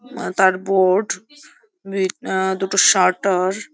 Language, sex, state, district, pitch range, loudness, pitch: Bengali, female, West Bengal, Jhargram, 190-240 Hz, -18 LUFS, 195 Hz